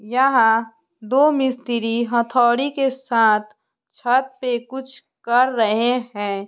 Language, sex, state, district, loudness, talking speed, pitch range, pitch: Hindi, male, Bihar, Muzaffarpur, -19 LUFS, 110 wpm, 225-265 Hz, 245 Hz